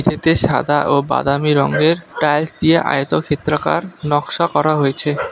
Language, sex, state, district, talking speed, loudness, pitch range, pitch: Bengali, male, West Bengal, Alipurduar, 125 wpm, -16 LUFS, 145-160 Hz, 150 Hz